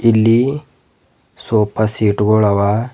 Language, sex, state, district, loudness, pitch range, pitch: Kannada, male, Karnataka, Bidar, -15 LUFS, 105-115 Hz, 110 Hz